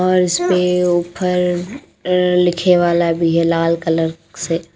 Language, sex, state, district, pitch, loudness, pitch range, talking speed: Hindi, female, Haryana, Rohtak, 175 Hz, -16 LUFS, 165-180 Hz, 140 wpm